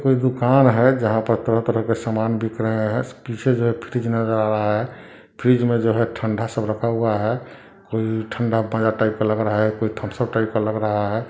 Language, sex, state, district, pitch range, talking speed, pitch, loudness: Hindi, male, Bihar, Sitamarhi, 110-120 Hz, 210 wpm, 115 Hz, -21 LUFS